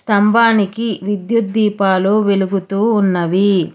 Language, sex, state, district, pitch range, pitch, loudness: Telugu, female, Telangana, Hyderabad, 195-215 Hz, 205 Hz, -15 LUFS